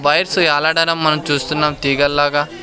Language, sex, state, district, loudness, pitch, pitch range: Telugu, male, Andhra Pradesh, Sri Satya Sai, -15 LUFS, 150 Hz, 145-160 Hz